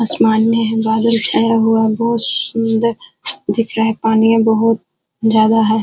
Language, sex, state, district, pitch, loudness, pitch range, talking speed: Hindi, female, Uttar Pradesh, Hamirpur, 225 Hz, -14 LUFS, 220-230 Hz, 145 wpm